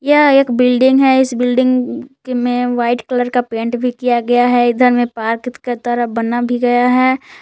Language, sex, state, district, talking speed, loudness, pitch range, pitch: Hindi, female, Jharkhand, Palamu, 195 wpm, -14 LUFS, 240-255 Hz, 245 Hz